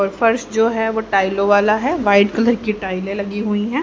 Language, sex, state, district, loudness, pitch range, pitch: Hindi, female, Haryana, Jhajjar, -17 LUFS, 200-225 Hz, 210 Hz